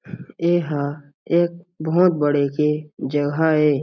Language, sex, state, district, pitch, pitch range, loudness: Chhattisgarhi, male, Chhattisgarh, Jashpur, 150 Hz, 145-170 Hz, -20 LUFS